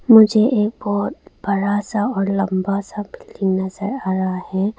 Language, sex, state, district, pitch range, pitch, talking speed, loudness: Hindi, female, Arunachal Pradesh, Longding, 195-220 Hz, 205 Hz, 150 wpm, -19 LUFS